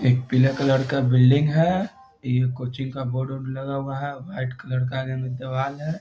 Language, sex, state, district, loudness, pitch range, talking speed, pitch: Hindi, male, Bihar, Muzaffarpur, -23 LUFS, 130-140 Hz, 220 wpm, 135 Hz